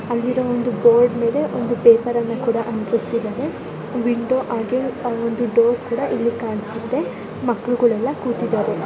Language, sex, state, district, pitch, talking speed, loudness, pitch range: Kannada, female, Karnataka, Belgaum, 235 Hz, 120 wpm, -20 LUFS, 230-245 Hz